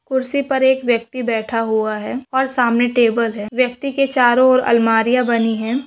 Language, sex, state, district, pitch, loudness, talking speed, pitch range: Hindi, female, West Bengal, Purulia, 245 Hz, -17 LUFS, 195 wpm, 230-260 Hz